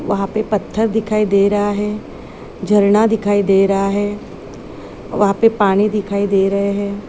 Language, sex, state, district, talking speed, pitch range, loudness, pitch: Hindi, female, Maharashtra, Nagpur, 160 wpm, 200-210 Hz, -16 LUFS, 205 Hz